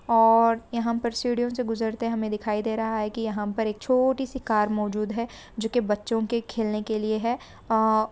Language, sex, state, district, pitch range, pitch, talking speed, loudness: Hindi, female, Andhra Pradesh, Guntur, 215-235 Hz, 225 Hz, 230 wpm, -26 LUFS